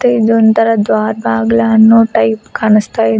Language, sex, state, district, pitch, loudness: Kannada, female, Karnataka, Koppal, 215 Hz, -11 LUFS